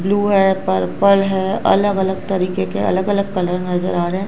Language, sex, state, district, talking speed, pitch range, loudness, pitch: Hindi, female, Gujarat, Gandhinagar, 210 wpm, 180-195 Hz, -17 LUFS, 190 Hz